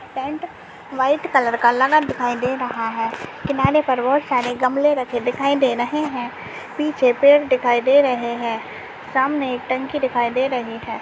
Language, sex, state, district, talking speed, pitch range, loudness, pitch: Hindi, female, Chhattisgarh, Kabirdham, 175 wpm, 240-280 Hz, -19 LUFS, 255 Hz